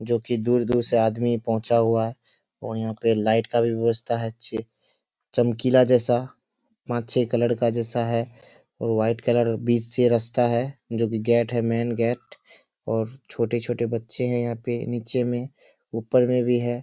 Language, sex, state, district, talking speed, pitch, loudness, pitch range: Hindi, male, Bihar, Kishanganj, 180 wpm, 120 Hz, -24 LUFS, 115-120 Hz